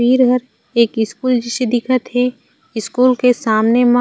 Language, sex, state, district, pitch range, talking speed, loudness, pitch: Chhattisgarhi, female, Chhattisgarh, Raigarh, 235-250 Hz, 180 wpm, -16 LUFS, 245 Hz